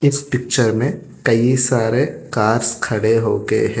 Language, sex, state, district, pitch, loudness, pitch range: Hindi, male, Telangana, Hyderabad, 120 Hz, -17 LUFS, 115-130 Hz